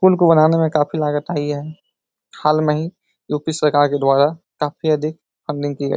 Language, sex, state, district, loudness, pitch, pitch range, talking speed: Hindi, male, Uttar Pradesh, Etah, -18 LUFS, 150 Hz, 145-160 Hz, 200 wpm